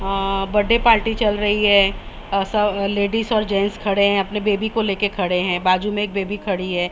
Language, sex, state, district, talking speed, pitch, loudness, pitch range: Hindi, female, Maharashtra, Mumbai Suburban, 190 wpm, 200 Hz, -19 LUFS, 195-210 Hz